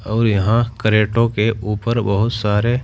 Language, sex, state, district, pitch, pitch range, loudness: Hindi, male, Uttar Pradesh, Saharanpur, 110 Hz, 105-115 Hz, -17 LUFS